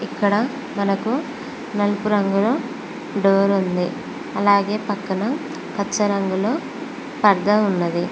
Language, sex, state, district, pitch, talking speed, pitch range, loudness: Telugu, female, Telangana, Mahabubabad, 205 Hz, 90 wpm, 200-270 Hz, -21 LUFS